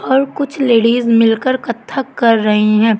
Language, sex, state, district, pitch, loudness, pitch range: Hindi, female, Madhya Pradesh, Katni, 235 Hz, -13 LUFS, 225-265 Hz